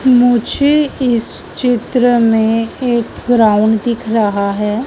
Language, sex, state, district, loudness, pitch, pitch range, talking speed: Hindi, female, Madhya Pradesh, Dhar, -13 LUFS, 235 Hz, 220-245 Hz, 110 wpm